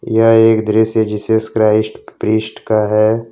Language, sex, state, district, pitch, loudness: Hindi, male, Jharkhand, Ranchi, 110 Hz, -14 LUFS